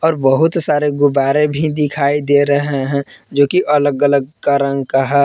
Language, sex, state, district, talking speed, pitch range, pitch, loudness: Hindi, male, Jharkhand, Palamu, 195 wpm, 140-150 Hz, 145 Hz, -15 LUFS